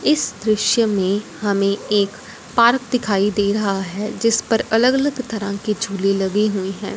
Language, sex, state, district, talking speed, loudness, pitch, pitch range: Hindi, male, Punjab, Fazilka, 170 wpm, -19 LUFS, 210 Hz, 200-230 Hz